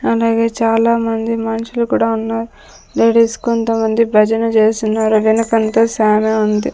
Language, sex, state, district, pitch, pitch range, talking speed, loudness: Telugu, female, Andhra Pradesh, Sri Satya Sai, 225 Hz, 220-230 Hz, 105 wpm, -14 LUFS